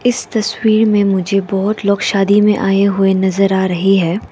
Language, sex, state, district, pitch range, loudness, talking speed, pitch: Hindi, female, Arunachal Pradesh, Lower Dibang Valley, 195-210 Hz, -14 LUFS, 195 wpm, 195 Hz